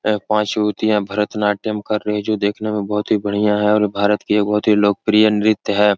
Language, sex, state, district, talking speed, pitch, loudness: Hindi, male, Uttar Pradesh, Etah, 220 wpm, 105 Hz, -17 LUFS